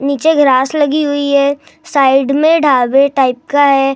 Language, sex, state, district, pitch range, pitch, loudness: Hindi, male, Maharashtra, Gondia, 270-290 Hz, 280 Hz, -12 LUFS